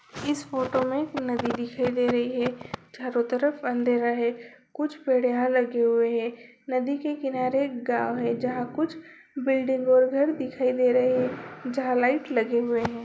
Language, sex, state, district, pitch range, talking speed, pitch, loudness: Hindi, female, Bihar, Jamui, 240-265 Hz, 175 wpm, 250 Hz, -26 LUFS